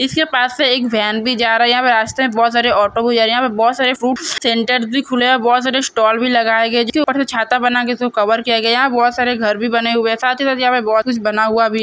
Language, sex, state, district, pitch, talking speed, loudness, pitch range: Hindi, male, Andhra Pradesh, Guntur, 240 Hz, 310 wpm, -14 LUFS, 225-255 Hz